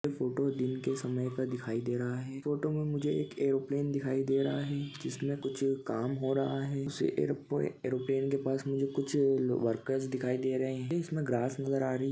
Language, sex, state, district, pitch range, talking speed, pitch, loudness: Hindi, male, Chhattisgarh, Bilaspur, 130-140 Hz, 190 wpm, 135 Hz, -33 LUFS